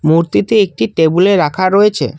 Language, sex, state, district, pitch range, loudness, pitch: Bengali, male, Assam, Kamrup Metropolitan, 155-200 Hz, -12 LUFS, 180 Hz